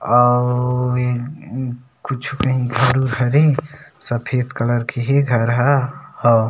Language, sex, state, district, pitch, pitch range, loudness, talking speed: Chhattisgarhi, male, Chhattisgarh, Sarguja, 125 Hz, 120-135 Hz, -18 LUFS, 130 wpm